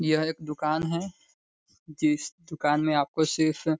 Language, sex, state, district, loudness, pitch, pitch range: Hindi, male, Bihar, Sitamarhi, -27 LUFS, 155 Hz, 150-160 Hz